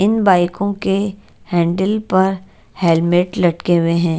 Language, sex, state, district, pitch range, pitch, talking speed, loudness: Hindi, female, Odisha, Nuapada, 170-200 Hz, 185 Hz, 130 wpm, -16 LUFS